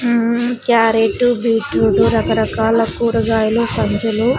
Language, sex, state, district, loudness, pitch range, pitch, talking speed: Telugu, female, Andhra Pradesh, Sri Satya Sai, -15 LUFS, 225-240 Hz, 230 Hz, 95 wpm